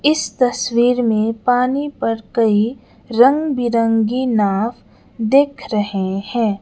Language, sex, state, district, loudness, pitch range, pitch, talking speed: Hindi, female, Sikkim, Gangtok, -17 LUFS, 220-255 Hz, 235 Hz, 110 wpm